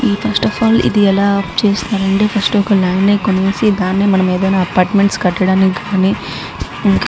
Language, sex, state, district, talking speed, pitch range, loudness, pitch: Telugu, female, Andhra Pradesh, Guntur, 145 wpm, 190-205 Hz, -14 LUFS, 195 Hz